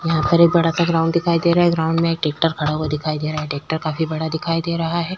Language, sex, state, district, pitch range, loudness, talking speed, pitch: Hindi, female, Uttar Pradesh, Jyotiba Phule Nagar, 155-170 Hz, -19 LUFS, 300 wpm, 165 Hz